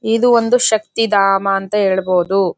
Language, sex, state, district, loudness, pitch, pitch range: Kannada, female, Karnataka, Bellary, -14 LUFS, 200 Hz, 195-225 Hz